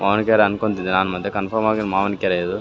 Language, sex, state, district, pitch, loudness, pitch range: Kannada, male, Karnataka, Raichur, 100 Hz, -20 LUFS, 95-105 Hz